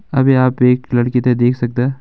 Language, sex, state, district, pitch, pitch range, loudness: Hindi, male, Uttarakhand, Uttarkashi, 125 Hz, 125-130 Hz, -14 LUFS